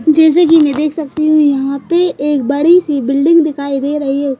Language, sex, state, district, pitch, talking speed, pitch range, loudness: Hindi, female, Madhya Pradesh, Bhopal, 295 Hz, 205 wpm, 280-320 Hz, -12 LUFS